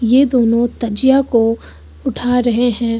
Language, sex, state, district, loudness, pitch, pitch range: Hindi, female, Uttar Pradesh, Lucknow, -15 LUFS, 235 Hz, 230-245 Hz